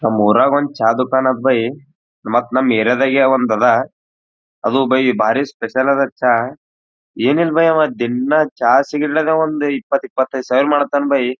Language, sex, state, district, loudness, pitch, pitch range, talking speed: Kannada, male, Karnataka, Gulbarga, -15 LUFS, 130 Hz, 120-145 Hz, 165 wpm